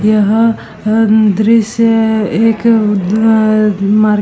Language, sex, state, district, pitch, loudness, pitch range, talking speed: Hindi, female, Bihar, Vaishali, 215 Hz, -11 LUFS, 210-225 Hz, 100 wpm